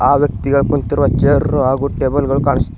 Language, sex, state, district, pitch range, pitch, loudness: Kannada, male, Karnataka, Koppal, 135-145 Hz, 140 Hz, -15 LUFS